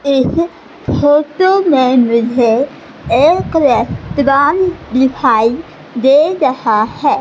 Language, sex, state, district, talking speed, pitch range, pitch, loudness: Hindi, female, Madhya Pradesh, Katni, 85 wpm, 250-305 Hz, 275 Hz, -12 LUFS